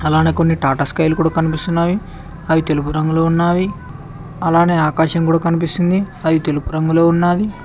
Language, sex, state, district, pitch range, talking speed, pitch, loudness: Telugu, male, Telangana, Mahabubabad, 155-170 Hz, 150 wpm, 165 Hz, -16 LUFS